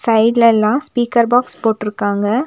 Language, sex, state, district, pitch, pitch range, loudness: Tamil, female, Tamil Nadu, Nilgiris, 230 Hz, 215-240 Hz, -15 LUFS